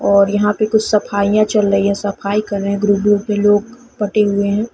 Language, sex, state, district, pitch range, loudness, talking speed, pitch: Hindi, female, Chhattisgarh, Sukma, 200-210 Hz, -15 LUFS, 240 wpm, 205 Hz